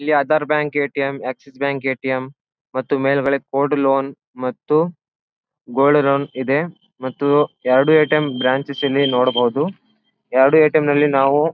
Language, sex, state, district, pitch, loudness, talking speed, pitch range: Kannada, male, Karnataka, Bijapur, 140 Hz, -18 LUFS, 130 wpm, 135-150 Hz